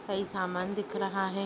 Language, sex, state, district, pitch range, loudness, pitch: Hindi, female, Chhattisgarh, Rajnandgaon, 190-200 Hz, -33 LUFS, 195 Hz